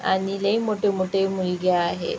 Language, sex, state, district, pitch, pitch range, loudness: Marathi, female, Maharashtra, Aurangabad, 195 Hz, 185-205 Hz, -23 LUFS